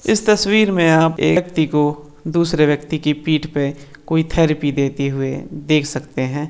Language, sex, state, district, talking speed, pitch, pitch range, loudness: Hindi, male, Maharashtra, Nagpur, 175 wpm, 155 Hz, 145-165 Hz, -17 LUFS